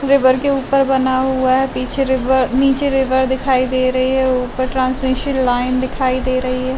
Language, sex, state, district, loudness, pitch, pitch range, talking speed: Hindi, female, Uttar Pradesh, Gorakhpur, -16 LUFS, 260 Hz, 255-265 Hz, 195 wpm